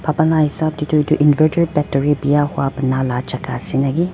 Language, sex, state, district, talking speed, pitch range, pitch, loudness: Nagamese, female, Nagaland, Dimapur, 175 wpm, 135-155 Hz, 150 Hz, -17 LUFS